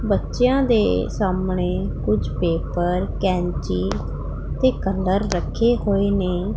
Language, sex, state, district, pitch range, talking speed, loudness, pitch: Punjabi, female, Punjab, Pathankot, 180-215 Hz, 100 wpm, -21 LUFS, 190 Hz